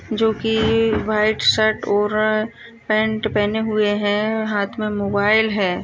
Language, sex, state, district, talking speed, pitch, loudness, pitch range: Hindi, female, Chhattisgarh, Sukma, 145 wpm, 215 Hz, -19 LUFS, 210-220 Hz